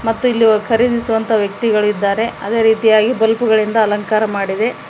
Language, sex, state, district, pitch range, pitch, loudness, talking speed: Kannada, female, Karnataka, Koppal, 210-230 Hz, 220 Hz, -15 LUFS, 145 wpm